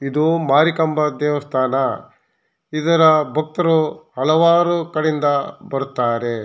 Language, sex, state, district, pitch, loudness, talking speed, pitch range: Kannada, male, Karnataka, Shimoga, 155 Hz, -18 LUFS, 75 wpm, 140-160 Hz